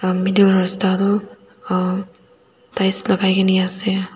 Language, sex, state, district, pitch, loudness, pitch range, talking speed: Nagamese, female, Nagaland, Dimapur, 190 Hz, -17 LUFS, 185-195 Hz, 130 wpm